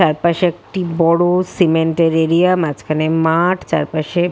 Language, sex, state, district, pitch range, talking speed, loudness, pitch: Bengali, female, West Bengal, Kolkata, 160-175 Hz, 140 wpm, -16 LUFS, 165 Hz